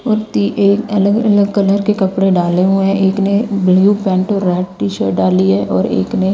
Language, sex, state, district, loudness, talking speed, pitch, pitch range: Hindi, female, Himachal Pradesh, Shimla, -13 LUFS, 200 wpm, 195 Hz, 180-200 Hz